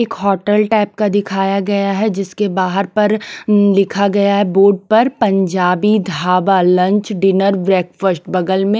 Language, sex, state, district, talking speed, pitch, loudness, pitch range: Hindi, female, Punjab, Pathankot, 150 wpm, 200 Hz, -14 LUFS, 190-210 Hz